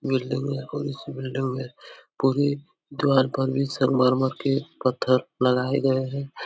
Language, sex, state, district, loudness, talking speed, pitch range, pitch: Hindi, male, Uttar Pradesh, Etah, -24 LUFS, 150 wpm, 130-140 Hz, 135 Hz